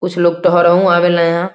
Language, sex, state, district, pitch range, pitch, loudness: Hindi, female, Uttar Pradesh, Gorakhpur, 170-180 Hz, 175 Hz, -12 LUFS